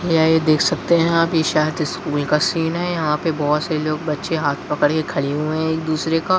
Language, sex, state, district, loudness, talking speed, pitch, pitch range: Hindi, male, Bihar, Jahanabad, -19 LUFS, 255 wpm, 160 Hz, 150-165 Hz